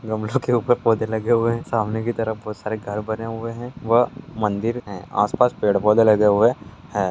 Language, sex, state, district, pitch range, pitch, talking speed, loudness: Hindi, male, Bihar, Darbhanga, 105-120 Hz, 110 Hz, 200 wpm, -21 LUFS